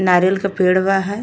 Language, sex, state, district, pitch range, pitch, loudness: Bhojpuri, female, Uttar Pradesh, Ghazipur, 185-195 Hz, 190 Hz, -16 LUFS